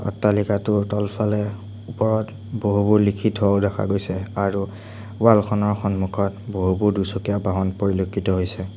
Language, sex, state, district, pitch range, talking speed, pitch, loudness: Assamese, male, Assam, Sonitpur, 100-105 Hz, 115 wpm, 100 Hz, -21 LUFS